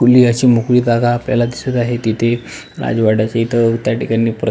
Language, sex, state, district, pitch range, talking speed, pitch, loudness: Marathi, male, Maharashtra, Pune, 115-120 Hz, 175 wpm, 120 Hz, -15 LUFS